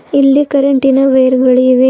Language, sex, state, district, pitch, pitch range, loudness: Kannada, female, Karnataka, Bidar, 270 Hz, 255-275 Hz, -10 LUFS